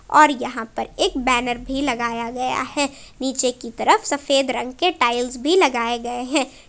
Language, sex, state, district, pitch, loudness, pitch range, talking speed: Hindi, female, Jharkhand, Palamu, 260 Hz, -20 LUFS, 245-285 Hz, 180 wpm